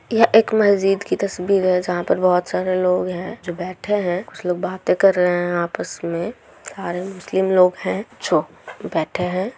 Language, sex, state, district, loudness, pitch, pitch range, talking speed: Hindi, female, Bihar, Gaya, -20 LUFS, 185 Hz, 180-195 Hz, 150 wpm